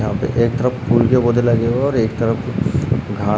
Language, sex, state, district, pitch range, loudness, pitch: Hindi, male, Uttarakhand, Uttarkashi, 110-120 Hz, -17 LUFS, 115 Hz